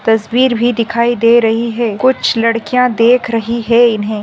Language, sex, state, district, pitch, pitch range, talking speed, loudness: Hindi, female, Andhra Pradesh, Chittoor, 235 Hz, 230-240 Hz, 170 wpm, -12 LUFS